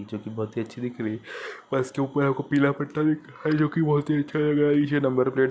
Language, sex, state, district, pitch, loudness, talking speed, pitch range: Hindi, male, Rajasthan, Churu, 140 Hz, -25 LUFS, 175 wpm, 130-150 Hz